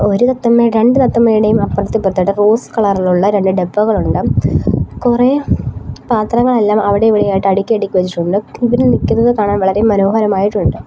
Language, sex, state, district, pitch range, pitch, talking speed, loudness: Malayalam, female, Kerala, Kollam, 200-235 Hz, 210 Hz, 125 wpm, -13 LUFS